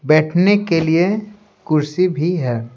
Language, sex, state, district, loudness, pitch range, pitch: Hindi, male, Bihar, Patna, -17 LUFS, 155-190 Hz, 165 Hz